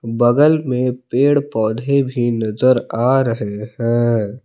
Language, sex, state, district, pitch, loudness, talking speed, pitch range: Hindi, male, Jharkhand, Palamu, 120 Hz, -17 LUFS, 120 wpm, 115-130 Hz